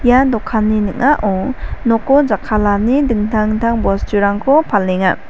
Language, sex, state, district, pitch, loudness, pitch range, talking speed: Garo, female, Meghalaya, South Garo Hills, 220 Hz, -15 LUFS, 205-255 Hz, 100 wpm